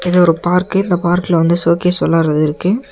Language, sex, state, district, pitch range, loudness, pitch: Tamil, male, Tamil Nadu, Nilgiris, 165-180 Hz, -14 LUFS, 175 Hz